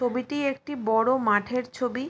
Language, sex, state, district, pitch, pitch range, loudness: Bengali, female, West Bengal, Jalpaiguri, 250 Hz, 240-270 Hz, -26 LUFS